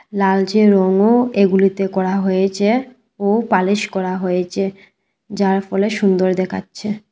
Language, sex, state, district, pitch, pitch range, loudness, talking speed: Bengali, female, Tripura, West Tripura, 195 Hz, 190-210 Hz, -17 LUFS, 110 wpm